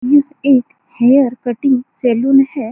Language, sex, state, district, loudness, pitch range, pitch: Hindi, female, Bihar, Saran, -14 LUFS, 245-275 Hz, 265 Hz